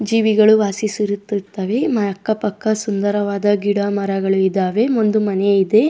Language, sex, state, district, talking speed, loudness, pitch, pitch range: Kannada, female, Karnataka, Dakshina Kannada, 110 wpm, -17 LUFS, 205 Hz, 200-215 Hz